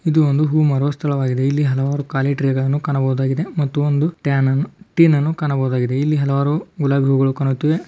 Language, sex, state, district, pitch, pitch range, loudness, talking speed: Kannada, male, Karnataka, Belgaum, 140 Hz, 135-150 Hz, -18 LUFS, 165 wpm